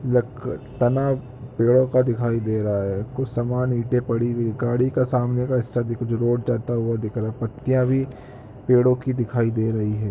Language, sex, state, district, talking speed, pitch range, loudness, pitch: Hindi, male, Jharkhand, Sahebganj, 190 wpm, 115-125 Hz, -22 LUFS, 120 Hz